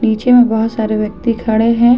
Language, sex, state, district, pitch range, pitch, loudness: Hindi, female, Jharkhand, Ranchi, 220-235 Hz, 225 Hz, -13 LUFS